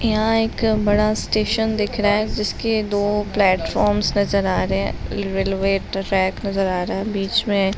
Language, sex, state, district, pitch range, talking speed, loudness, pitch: Hindi, female, Uttar Pradesh, Deoria, 195-215 Hz, 175 wpm, -20 LUFS, 205 Hz